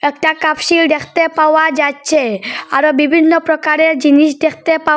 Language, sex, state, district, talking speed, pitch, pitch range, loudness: Bengali, female, Assam, Hailakandi, 145 wpm, 310 Hz, 300-320 Hz, -12 LUFS